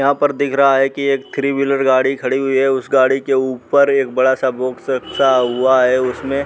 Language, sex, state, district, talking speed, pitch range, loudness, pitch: Hindi, male, Uttar Pradesh, Muzaffarnagar, 240 wpm, 130-140 Hz, -15 LUFS, 135 Hz